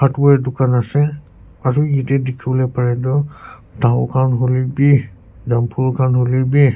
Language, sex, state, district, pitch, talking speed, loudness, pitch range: Nagamese, male, Nagaland, Kohima, 130 Hz, 135 wpm, -16 LUFS, 120-140 Hz